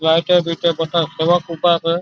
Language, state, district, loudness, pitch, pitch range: Bhili, Maharashtra, Dhule, -17 LUFS, 170 Hz, 165-175 Hz